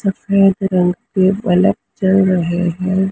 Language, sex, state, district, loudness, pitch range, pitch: Hindi, male, Maharashtra, Mumbai Suburban, -15 LUFS, 180-195 Hz, 190 Hz